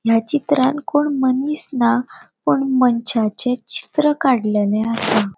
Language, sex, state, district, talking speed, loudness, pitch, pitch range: Konkani, female, Goa, North and South Goa, 110 wpm, -18 LUFS, 250 Hz, 225-280 Hz